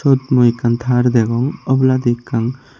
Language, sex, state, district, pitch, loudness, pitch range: Chakma, male, Tripura, Unakoti, 125 Hz, -16 LUFS, 120-130 Hz